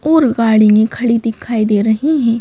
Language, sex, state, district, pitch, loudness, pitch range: Hindi, female, Madhya Pradesh, Bhopal, 230 Hz, -13 LUFS, 220-245 Hz